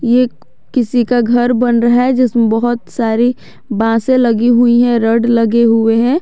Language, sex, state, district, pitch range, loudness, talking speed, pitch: Hindi, female, Jharkhand, Garhwa, 230-245 Hz, -12 LUFS, 175 wpm, 240 Hz